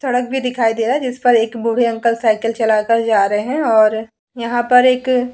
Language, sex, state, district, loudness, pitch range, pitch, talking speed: Hindi, female, Uttar Pradesh, Hamirpur, -15 LUFS, 225-250 Hz, 235 Hz, 245 wpm